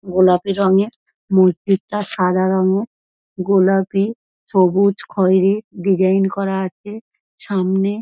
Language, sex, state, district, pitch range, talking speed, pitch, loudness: Bengali, female, West Bengal, Dakshin Dinajpur, 185-200 Hz, 95 wpm, 195 Hz, -17 LUFS